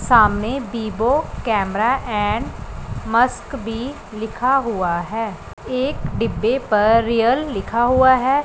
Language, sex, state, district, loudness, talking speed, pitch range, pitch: Hindi, female, Punjab, Pathankot, -19 LUFS, 115 wpm, 215-260 Hz, 230 Hz